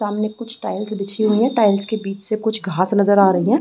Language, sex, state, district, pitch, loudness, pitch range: Hindi, female, Chhattisgarh, Balrampur, 210 Hz, -18 LUFS, 200-220 Hz